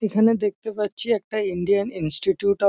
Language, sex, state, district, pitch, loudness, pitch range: Bengali, male, West Bengal, North 24 Parganas, 205 Hz, -22 LUFS, 195-220 Hz